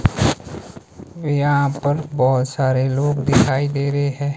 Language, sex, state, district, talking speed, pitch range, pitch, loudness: Hindi, male, Himachal Pradesh, Shimla, 125 wpm, 130-145 Hz, 140 Hz, -19 LUFS